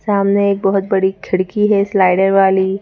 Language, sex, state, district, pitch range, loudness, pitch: Hindi, female, Madhya Pradesh, Bhopal, 190-200 Hz, -14 LUFS, 195 Hz